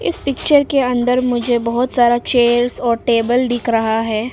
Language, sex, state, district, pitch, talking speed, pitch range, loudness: Hindi, female, Arunachal Pradesh, Papum Pare, 240 Hz, 165 wpm, 235-250 Hz, -16 LUFS